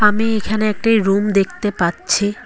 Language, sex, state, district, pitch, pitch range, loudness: Bengali, female, West Bengal, Cooch Behar, 210 Hz, 200-220 Hz, -17 LUFS